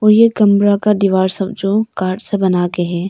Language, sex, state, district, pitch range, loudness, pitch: Hindi, female, Arunachal Pradesh, Longding, 185-210 Hz, -14 LUFS, 200 Hz